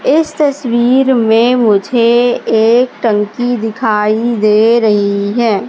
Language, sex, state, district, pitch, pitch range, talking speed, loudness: Hindi, female, Madhya Pradesh, Katni, 230 Hz, 215-245 Hz, 105 wpm, -11 LUFS